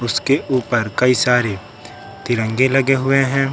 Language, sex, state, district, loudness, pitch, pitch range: Hindi, male, Uttar Pradesh, Lucknow, -17 LUFS, 125 Hz, 120-135 Hz